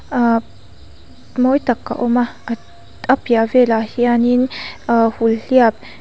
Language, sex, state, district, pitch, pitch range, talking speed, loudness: Mizo, female, Mizoram, Aizawl, 240 Hz, 230-245 Hz, 110 wpm, -16 LUFS